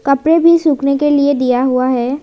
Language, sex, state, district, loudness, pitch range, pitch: Hindi, female, Arunachal Pradesh, Lower Dibang Valley, -12 LUFS, 260-295 Hz, 275 Hz